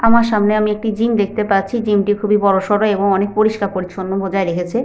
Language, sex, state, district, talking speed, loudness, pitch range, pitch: Bengali, female, West Bengal, Paschim Medinipur, 200 wpm, -16 LUFS, 195-215 Hz, 205 Hz